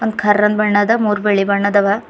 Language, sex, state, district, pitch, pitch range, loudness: Kannada, female, Karnataka, Bidar, 205 Hz, 200-210 Hz, -14 LUFS